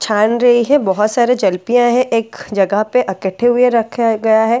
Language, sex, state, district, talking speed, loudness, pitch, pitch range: Hindi, female, Bihar, Katihar, 210 wpm, -14 LUFS, 230 Hz, 210-245 Hz